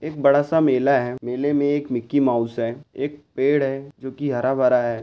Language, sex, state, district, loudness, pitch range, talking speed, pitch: Hindi, male, Maharashtra, Sindhudurg, -21 LUFS, 125-145 Hz, 215 wpm, 135 Hz